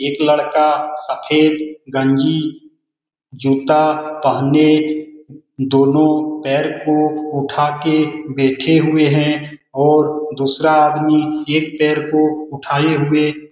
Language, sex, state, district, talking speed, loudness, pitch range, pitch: Hindi, male, Bihar, Lakhisarai, 100 wpm, -15 LUFS, 145-155 Hz, 150 Hz